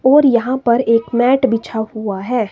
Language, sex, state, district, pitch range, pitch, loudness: Hindi, female, Himachal Pradesh, Shimla, 225-260 Hz, 235 Hz, -15 LUFS